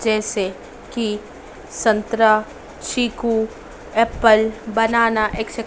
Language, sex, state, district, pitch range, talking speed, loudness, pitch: Hindi, female, Madhya Pradesh, Dhar, 215-230 Hz, 75 wpm, -19 LUFS, 220 Hz